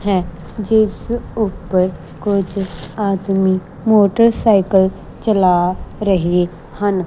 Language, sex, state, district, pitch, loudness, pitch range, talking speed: Punjabi, female, Punjab, Kapurthala, 195 Hz, -16 LUFS, 185-210 Hz, 75 wpm